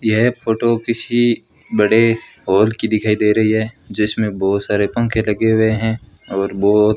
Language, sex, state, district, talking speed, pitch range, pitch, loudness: Hindi, female, Rajasthan, Bikaner, 170 wpm, 105-115 Hz, 110 Hz, -17 LUFS